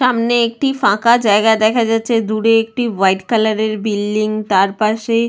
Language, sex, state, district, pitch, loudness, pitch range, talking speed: Bengali, female, West Bengal, Purulia, 220 Hz, -15 LUFS, 215-235 Hz, 145 wpm